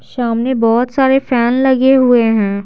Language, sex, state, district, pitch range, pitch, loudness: Hindi, female, Bihar, Patna, 230-265 Hz, 245 Hz, -12 LUFS